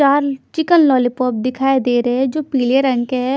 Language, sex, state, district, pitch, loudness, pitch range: Hindi, female, Chhattisgarh, Raipur, 265 Hz, -16 LUFS, 250-280 Hz